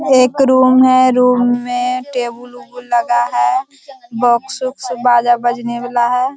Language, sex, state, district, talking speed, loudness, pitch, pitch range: Hindi, female, Bihar, Jamui, 120 wpm, -14 LUFS, 245 Hz, 240-255 Hz